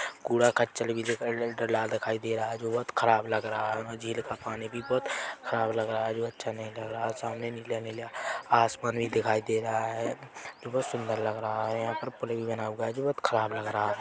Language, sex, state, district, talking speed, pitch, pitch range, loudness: Hindi, male, Chhattisgarh, Bilaspur, 240 wpm, 115 Hz, 110-115 Hz, -30 LUFS